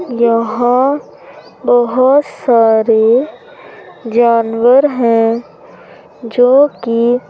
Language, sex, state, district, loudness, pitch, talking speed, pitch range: Hindi, female, Madhya Pradesh, Umaria, -12 LUFS, 240 Hz, 50 wpm, 230-265 Hz